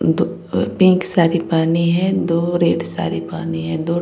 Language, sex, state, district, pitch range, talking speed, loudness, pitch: Hindi, female, Bihar, Patna, 165-175 Hz, 195 wpm, -17 LUFS, 170 Hz